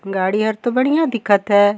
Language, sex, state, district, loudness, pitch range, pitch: Surgujia, female, Chhattisgarh, Sarguja, -17 LUFS, 205-240 Hz, 210 Hz